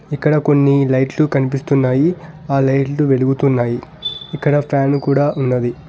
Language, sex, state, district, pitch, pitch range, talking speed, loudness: Telugu, male, Telangana, Hyderabad, 140 Hz, 135-150 Hz, 110 wpm, -16 LUFS